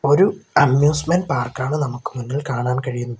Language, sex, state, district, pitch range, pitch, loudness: Malayalam, male, Kerala, Kollam, 125-150 Hz, 135 Hz, -20 LUFS